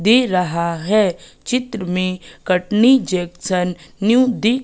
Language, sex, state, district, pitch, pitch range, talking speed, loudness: Hindi, female, Madhya Pradesh, Katni, 190 Hz, 180-230 Hz, 115 wpm, -18 LUFS